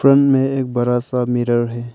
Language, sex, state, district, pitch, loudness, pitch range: Hindi, male, Arunachal Pradesh, Papum Pare, 125 Hz, -17 LUFS, 120-135 Hz